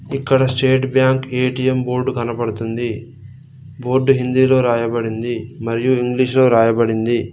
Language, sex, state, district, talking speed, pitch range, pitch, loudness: Telugu, male, Telangana, Mahabubabad, 100 wpm, 115-130 Hz, 125 Hz, -17 LUFS